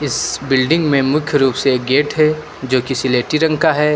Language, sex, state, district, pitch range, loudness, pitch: Hindi, male, Uttar Pradesh, Lucknow, 130-155 Hz, -15 LUFS, 145 Hz